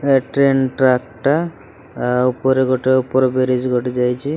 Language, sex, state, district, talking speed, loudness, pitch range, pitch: Odia, male, Odisha, Malkangiri, 135 wpm, -17 LUFS, 125-135 Hz, 130 Hz